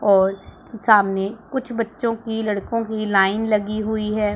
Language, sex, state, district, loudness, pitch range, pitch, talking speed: Hindi, female, Punjab, Pathankot, -21 LUFS, 205-225 Hz, 215 Hz, 150 wpm